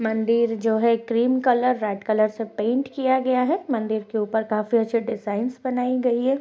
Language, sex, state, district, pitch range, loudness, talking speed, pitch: Hindi, female, Bihar, Araria, 220-255 Hz, -22 LUFS, 195 wpm, 230 Hz